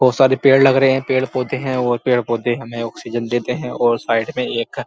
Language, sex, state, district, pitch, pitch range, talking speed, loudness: Hindi, male, Uttar Pradesh, Muzaffarnagar, 125 Hz, 120-130 Hz, 245 wpm, -17 LUFS